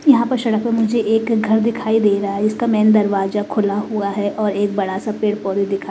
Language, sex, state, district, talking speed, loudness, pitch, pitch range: Hindi, female, Bihar, West Champaran, 245 wpm, -18 LUFS, 215 Hz, 205-225 Hz